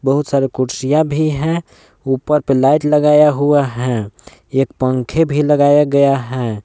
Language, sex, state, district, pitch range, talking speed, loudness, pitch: Hindi, male, Jharkhand, Palamu, 130-150 Hz, 155 wpm, -15 LUFS, 140 Hz